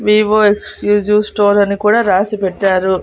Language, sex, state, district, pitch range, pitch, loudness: Telugu, female, Andhra Pradesh, Annamaya, 195-210 Hz, 205 Hz, -13 LUFS